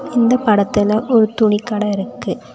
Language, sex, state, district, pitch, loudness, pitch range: Tamil, female, Tamil Nadu, Nilgiris, 215 Hz, -16 LUFS, 210-235 Hz